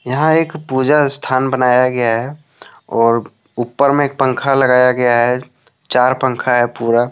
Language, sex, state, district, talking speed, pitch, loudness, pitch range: Hindi, male, Jharkhand, Deoghar, 160 wpm, 125 Hz, -14 LUFS, 120-135 Hz